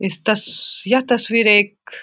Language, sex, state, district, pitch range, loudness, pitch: Hindi, male, Bihar, Jahanabad, 205-235 Hz, -17 LUFS, 215 Hz